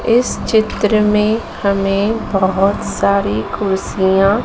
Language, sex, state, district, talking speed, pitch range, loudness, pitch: Hindi, female, Madhya Pradesh, Dhar, 95 wpm, 190-215 Hz, -15 LUFS, 200 Hz